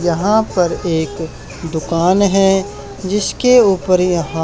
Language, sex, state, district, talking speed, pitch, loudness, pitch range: Hindi, male, Haryana, Charkhi Dadri, 110 wpm, 180 Hz, -15 LUFS, 165-195 Hz